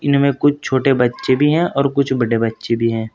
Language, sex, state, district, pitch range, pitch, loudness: Hindi, male, Uttar Pradesh, Saharanpur, 115-140 Hz, 130 Hz, -16 LUFS